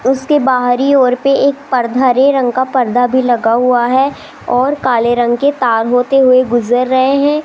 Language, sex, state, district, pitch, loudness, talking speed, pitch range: Hindi, female, Rajasthan, Jaipur, 255 Hz, -12 LUFS, 195 wpm, 245-270 Hz